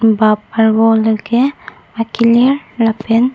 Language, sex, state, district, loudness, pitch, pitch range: Karbi, female, Assam, Karbi Anglong, -13 LUFS, 225 Hz, 220-245 Hz